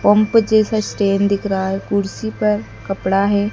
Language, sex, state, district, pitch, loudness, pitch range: Hindi, female, Madhya Pradesh, Dhar, 205 Hz, -17 LUFS, 195-215 Hz